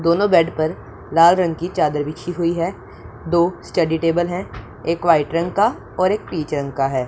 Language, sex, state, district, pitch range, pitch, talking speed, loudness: Hindi, male, Punjab, Pathankot, 155-175 Hz, 170 Hz, 205 wpm, -19 LUFS